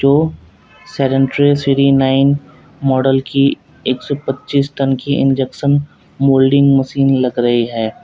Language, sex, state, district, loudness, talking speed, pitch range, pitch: Hindi, male, Uttar Pradesh, Lalitpur, -14 LUFS, 120 wpm, 135-140 Hz, 135 Hz